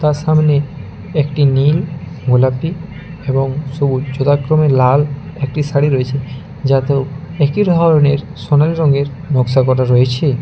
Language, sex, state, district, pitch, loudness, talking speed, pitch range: Bengali, male, West Bengal, Alipurduar, 145 Hz, -14 LUFS, 115 wpm, 135-155 Hz